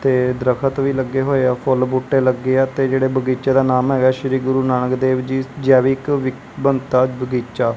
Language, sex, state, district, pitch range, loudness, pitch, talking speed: Punjabi, male, Punjab, Kapurthala, 130-135 Hz, -17 LUFS, 130 Hz, 185 wpm